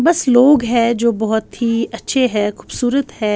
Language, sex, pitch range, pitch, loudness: Urdu, female, 220-255 Hz, 235 Hz, -16 LUFS